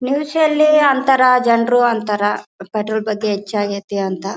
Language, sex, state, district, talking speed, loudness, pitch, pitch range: Kannada, female, Karnataka, Bellary, 125 wpm, -16 LUFS, 220 Hz, 205-265 Hz